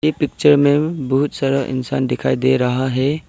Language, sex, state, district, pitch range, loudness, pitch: Hindi, male, Arunachal Pradesh, Papum Pare, 130-150 Hz, -17 LUFS, 135 Hz